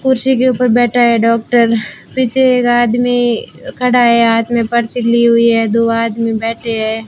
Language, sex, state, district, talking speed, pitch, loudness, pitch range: Hindi, female, Rajasthan, Bikaner, 180 wpm, 235 Hz, -12 LUFS, 230-245 Hz